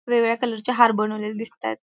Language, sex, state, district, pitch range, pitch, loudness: Marathi, female, Maharashtra, Pune, 215-235 Hz, 225 Hz, -22 LUFS